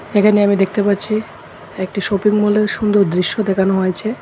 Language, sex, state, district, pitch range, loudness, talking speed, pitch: Bengali, male, Tripura, West Tripura, 195-210 Hz, -16 LUFS, 155 wpm, 205 Hz